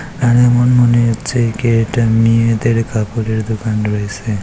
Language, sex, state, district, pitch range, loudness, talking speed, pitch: Bengali, male, West Bengal, Malda, 110-120 Hz, -14 LUFS, 135 wpm, 115 Hz